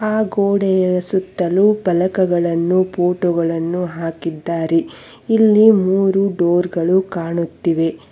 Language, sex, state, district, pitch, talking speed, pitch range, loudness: Kannada, female, Karnataka, Bangalore, 180 Hz, 90 wpm, 170-195 Hz, -17 LUFS